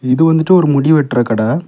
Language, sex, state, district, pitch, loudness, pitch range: Tamil, male, Tamil Nadu, Kanyakumari, 150 Hz, -12 LUFS, 125-160 Hz